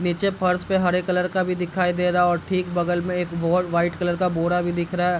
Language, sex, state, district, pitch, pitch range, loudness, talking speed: Hindi, male, Bihar, Bhagalpur, 180 Hz, 175-180 Hz, -22 LUFS, 290 wpm